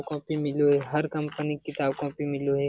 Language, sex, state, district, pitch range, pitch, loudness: Hindi, male, Bihar, Jamui, 140-150 Hz, 145 Hz, -28 LUFS